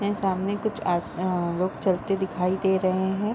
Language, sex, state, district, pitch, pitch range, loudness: Hindi, female, Bihar, Gopalganj, 190 Hz, 185-195 Hz, -26 LUFS